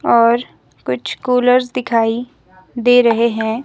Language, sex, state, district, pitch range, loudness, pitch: Hindi, female, Himachal Pradesh, Shimla, 220-245 Hz, -15 LUFS, 235 Hz